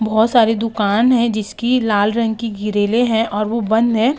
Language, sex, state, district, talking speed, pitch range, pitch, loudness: Hindi, female, Uttar Pradesh, Jalaun, 200 wpm, 215-235 Hz, 225 Hz, -16 LUFS